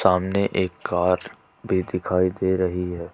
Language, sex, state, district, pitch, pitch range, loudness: Hindi, male, Jharkhand, Ranchi, 90 Hz, 90-95 Hz, -23 LUFS